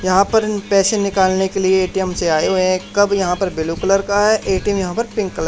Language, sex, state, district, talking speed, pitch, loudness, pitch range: Hindi, male, Haryana, Charkhi Dadri, 275 wpm, 195 Hz, -17 LUFS, 185-205 Hz